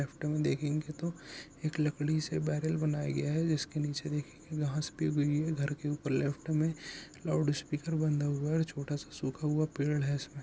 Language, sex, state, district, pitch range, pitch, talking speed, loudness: Hindi, male, Bihar, Saharsa, 145-155 Hz, 150 Hz, 180 wpm, -34 LUFS